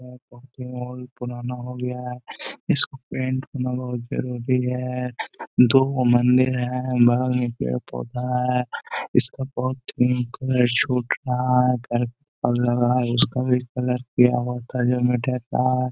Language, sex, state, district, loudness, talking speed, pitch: Hindi, male, Bihar, Gaya, -23 LUFS, 120 wpm, 125 Hz